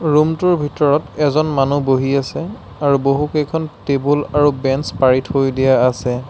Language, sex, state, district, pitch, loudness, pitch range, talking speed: Assamese, male, Assam, Sonitpur, 140 Hz, -16 LUFS, 135-150 Hz, 160 wpm